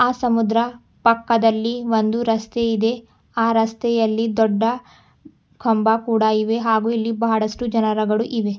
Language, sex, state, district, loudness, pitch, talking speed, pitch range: Kannada, female, Karnataka, Bidar, -19 LUFS, 225 Hz, 120 wpm, 220-230 Hz